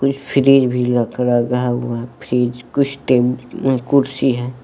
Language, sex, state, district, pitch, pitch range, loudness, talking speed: Hindi, male, Jharkhand, Palamu, 125 Hz, 120-135 Hz, -17 LUFS, 130 wpm